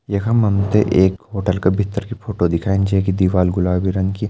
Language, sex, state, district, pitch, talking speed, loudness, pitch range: Hindi, male, Uttarakhand, Uttarkashi, 95 Hz, 225 wpm, -18 LUFS, 95-105 Hz